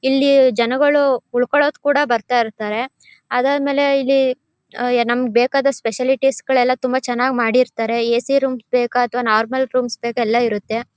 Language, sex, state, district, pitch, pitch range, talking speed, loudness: Kannada, female, Karnataka, Mysore, 250 Hz, 235-270 Hz, 135 wpm, -17 LUFS